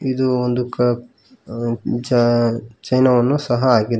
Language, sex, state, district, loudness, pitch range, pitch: Kannada, male, Karnataka, Koppal, -18 LUFS, 120-130 Hz, 120 Hz